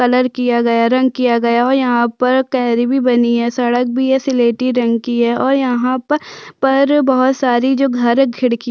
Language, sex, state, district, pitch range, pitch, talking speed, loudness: Hindi, female, Chhattisgarh, Sukma, 240-265 Hz, 250 Hz, 200 wpm, -14 LUFS